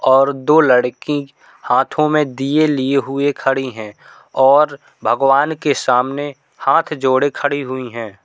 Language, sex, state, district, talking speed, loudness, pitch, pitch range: Hindi, male, Uttar Pradesh, Hamirpur, 140 wpm, -16 LUFS, 135 Hz, 130-145 Hz